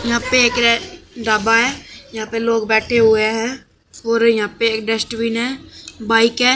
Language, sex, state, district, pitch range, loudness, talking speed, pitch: Hindi, male, Haryana, Jhajjar, 225-235 Hz, -16 LUFS, 185 wpm, 230 Hz